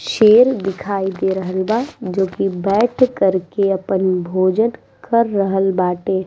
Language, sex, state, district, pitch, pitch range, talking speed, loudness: Bhojpuri, female, Bihar, East Champaran, 195 Hz, 185-220 Hz, 155 wpm, -17 LUFS